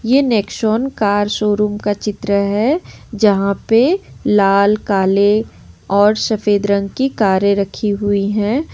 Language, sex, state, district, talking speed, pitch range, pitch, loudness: Hindi, female, Jharkhand, Ranchi, 130 wpm, 200-220 Hz, 205 Hz, -15 LUFS